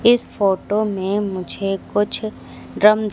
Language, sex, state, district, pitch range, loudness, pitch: Hindi, female, Madhya Pradesh, Katni, 195-215 Hz, -20 LUFS, 205 Hz